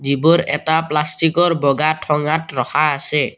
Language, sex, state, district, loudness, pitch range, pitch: Assamese, male, Assam, Kamrup Metropolitan, -16 LUFS, 145-160 Hz, 150 Hz